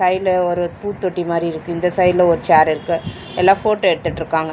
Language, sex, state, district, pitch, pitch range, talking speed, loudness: Tamil, male, Tamil Nadu, Chennai, 175 Hz, 165-185 Hz, 170 wpm, -17 LUFS